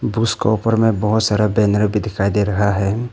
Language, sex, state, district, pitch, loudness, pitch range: Hindi, male, Arunachal Pradesh, Papum Pare, 105 Hz, -17 LUFS, 105-115 Hz